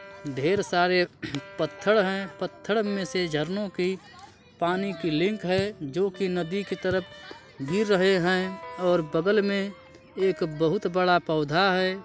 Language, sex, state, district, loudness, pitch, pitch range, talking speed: Hindi, male, West Bengal, Purulia, -26 LUFS, 185 Hz, 170-195 Hz, 145 wpm